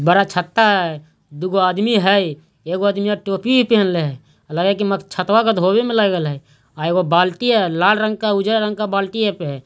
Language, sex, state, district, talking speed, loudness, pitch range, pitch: Hindi, male, Bihar, Jahanabad, 210 wpm, -17 LUFS, 170-210 Hz, 195 Hz